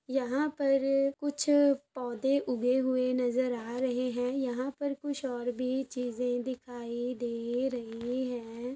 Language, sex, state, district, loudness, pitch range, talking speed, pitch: Hindi, female, Chhattisgarh, Bastar, -31 LUFS, 245-270 Hz, 135 wpm, 255 Hz